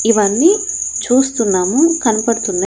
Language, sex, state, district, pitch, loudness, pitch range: Telugu, female, Andhra Pradesh, Annamaya, 230 Hz, -14 LUFS, 210-285 Hz